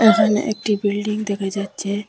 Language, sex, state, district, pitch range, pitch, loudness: Bengali, female, Assam, Hailakandi, 200-210 Hz, 210 Hz, -20 LUFS